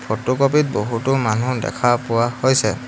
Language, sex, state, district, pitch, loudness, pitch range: Assamese, male, Assam, Hailakandi, 120 Hz, -19 LUFS, 115-130 Hz